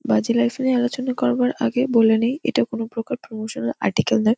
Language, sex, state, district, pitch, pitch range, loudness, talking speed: Bengali, female, West Bengal, Kolkata, 230 Hz, 220-255 Hz, -21 LUFS, 205 wpm